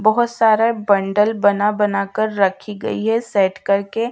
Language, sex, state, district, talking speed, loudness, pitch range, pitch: Hindi, female, Odisha, Malkangiri, 145 wpm, -18 LUFS, 200-225 Hz, 210 Hz